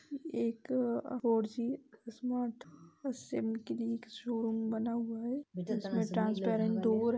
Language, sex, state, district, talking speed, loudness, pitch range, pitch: Hindi, female, Bihar, Gopalganj, 160 wpm, -36 LUFS, 220-245 Hz, 230 Hz